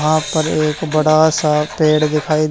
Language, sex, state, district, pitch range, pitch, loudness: Hindi, male, Haryana, Charkhi Dadri, 150-155 Hz, 155 Hz, -15 LUFS